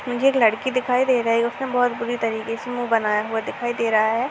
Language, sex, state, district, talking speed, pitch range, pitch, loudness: Hindi, female, Uttar Pradesh, Hamirpur, 265 wpm, 225-250 Hz, 240 Hz, -21 LUFS